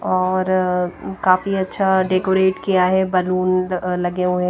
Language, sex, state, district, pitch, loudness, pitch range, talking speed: Hindi, female, Odisha, Nuapada, 185 Hz, -18 LUFS, 180-190 Hz, 120 wpm